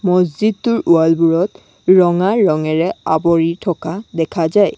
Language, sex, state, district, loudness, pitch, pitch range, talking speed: Assamese, female, Assam, Sonitpur, -15 LUFS, 175 Hz, 165-195 Hz, 115 wpm